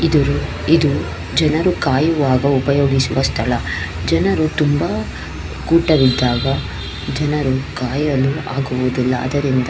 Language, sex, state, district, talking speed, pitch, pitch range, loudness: Kannada, female, Karnataka, Belgaum, 85 wpm, 130 Hz, 120-145 Hz, -17 LUFS